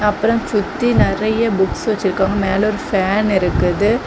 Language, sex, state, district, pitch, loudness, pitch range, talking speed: Tamil, female, Tamil Nadu, Kanyakumari, 210 Hz, -17 LUFS, 195-220 Hz, 135 wpm